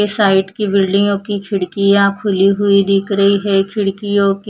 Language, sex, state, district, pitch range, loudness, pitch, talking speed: Hindi, female, Odisha, Khordha, 195-205 Hz, -14 LUFS, 200 Hz, 175 wpm